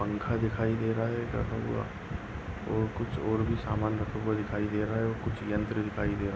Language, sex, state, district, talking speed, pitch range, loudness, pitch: Hindi, male, Goa, North and South Goa, 235 wpm, 105-115 Hz, -32 LUFS, 110 Hz